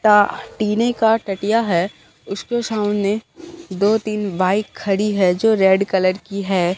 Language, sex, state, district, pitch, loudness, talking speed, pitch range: Hindi, female, Bihar, Katihar, 205 Hz, -18 LUFS, 140 wpm, 190-220 Hz